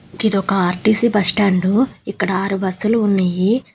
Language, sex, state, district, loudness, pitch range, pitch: Telugu, female, Telangana, Hyderabad, -16 LUFS, 190-215 Hz, 195 Hz